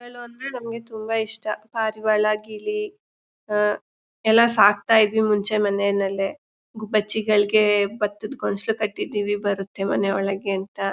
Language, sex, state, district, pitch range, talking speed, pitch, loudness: Kannada, female, Karnataka, Mysore, 200-225 Hz, 115 wpm, 215 Hz, -22 LUFS